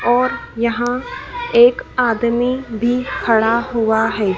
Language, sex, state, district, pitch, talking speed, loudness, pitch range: Hindi, female, Madhya Pradesh, Dhar, 240 Hz, 110 wpm, -17 LUFS, 230-250 Hz